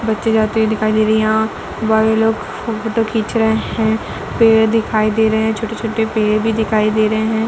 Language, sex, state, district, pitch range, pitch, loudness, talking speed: Hindi, female, Uttar Pradesh, Budaun, 220-225 Hz, 220 Hz, -16 LUFS, 200 wpm